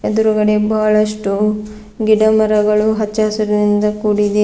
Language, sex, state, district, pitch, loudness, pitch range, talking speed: Kannada, female, Karnataka, Bidar, 215 Hz, -15 LUFS, 210-215 Hz, 95 wpm